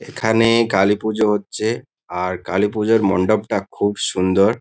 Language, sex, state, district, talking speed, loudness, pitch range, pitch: Bengali, male, West Bengal, Kolkata, 105 wpm, -18 LUFS, 95-110 Hz, 105 Hz